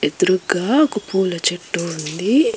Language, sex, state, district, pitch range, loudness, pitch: Telugu, female, Telangana, Hyderabad, 175-230 Hz, -19 LUFS, 185 Hz